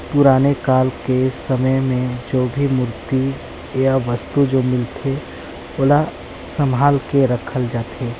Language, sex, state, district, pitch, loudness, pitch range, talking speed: Hindi, male, Chhattisgarh, Sarguja, 130 Hz, -18 LUFS, 125-135 Hz, 130 wpm